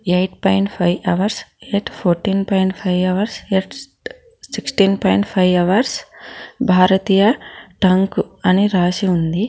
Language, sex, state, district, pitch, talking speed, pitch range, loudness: Telugu, female, Telangana, Mahabubabad, 190 Hz, 120 wpm, 185-200 Hz, -17 LUFS